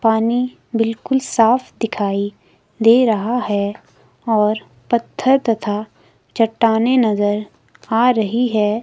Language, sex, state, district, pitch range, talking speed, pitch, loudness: Hindi, female, Himachal Pradesh, Shimla, 210-240 Hz, 100 wpm, 225 Hz, -17 LUFS